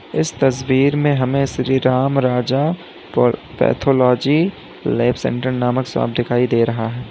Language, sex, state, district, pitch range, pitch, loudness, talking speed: Hindi, male, Uttar Pradesh, Lalitpur, 125-140 Hz, 130 Hz, -17 LUFS, 135 wpm